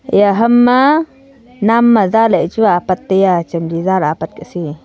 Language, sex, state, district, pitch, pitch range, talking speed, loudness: Wancho, female, Arunachal Pradesh, Longding, 205 Hz, 175-240 Hz, 160 wpm, -13 LUFS